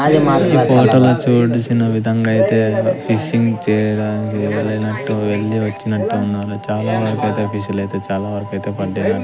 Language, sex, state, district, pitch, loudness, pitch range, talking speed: Telugu, male, Andhra Pradesh, Sri Satya Sai, 110 Hz, -16 LUFS, 105-115 Hz, 105 wpm